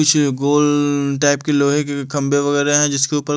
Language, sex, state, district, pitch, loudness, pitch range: Hindi, male, Delhi, New Delhi, 145 Hz, -16 LUFS, 140-145 Hz